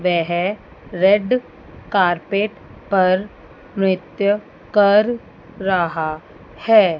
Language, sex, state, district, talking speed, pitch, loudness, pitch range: Hindi, female, Chandigarh, Chandigarh, 70 wpm, 195 Hz, -18 LUFS, 175-210 Hz